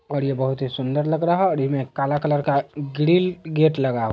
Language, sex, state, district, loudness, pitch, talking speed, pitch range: Hindi, male, Bihar, Saharsa, -21 LUFS, 145 Hz, 245 wpm, 135-155 Hz